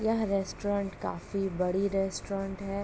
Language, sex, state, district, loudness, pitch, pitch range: Hindi, female, Uttar Pradesh, Ghazipur, -32 LUFS, 195 Hz, 195-200 Hz